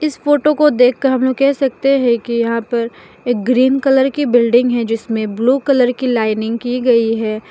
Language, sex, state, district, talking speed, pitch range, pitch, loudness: Hindi, female, Mizoram, Aizawl, 210 wpm, 230-270 Hz, 245 Hz, -15 LUFS